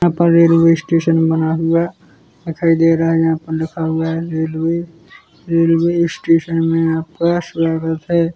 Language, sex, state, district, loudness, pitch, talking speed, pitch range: Hindi, male, Chhattisgarh, Korba, -15 LUFS, 165 Hz, 160 wpm, 160-170 Hz